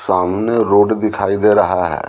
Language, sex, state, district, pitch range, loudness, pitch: Hindi, male, Bihar, Patna, 100-110 Hz, -15 LUFS, 105 Hz